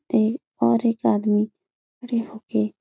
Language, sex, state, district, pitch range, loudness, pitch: Hindi, female, Uttar Pradesh, Etah, 205-235 Hz, -23 LUFS, 220 Hz